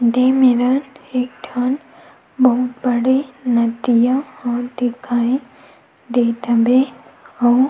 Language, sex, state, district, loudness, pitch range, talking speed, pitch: Chhattisgarhi, female, Chhattisgarh, Sukma, -17 LUFS, 240-260 Hz, 95 wpm, 250 Hz